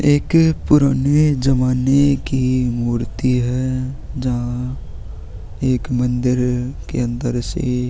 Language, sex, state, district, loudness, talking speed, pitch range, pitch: Hindi, male, Chhattisgarh, Sukma, -18 LUFS, 105 wpm, 120-135 Hz, 125 Hz